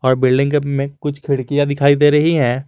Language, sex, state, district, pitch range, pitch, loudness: Hindi, male, Jharkhand, Garhwa, 135-145 Hz, 140 Hz, -16 LUFS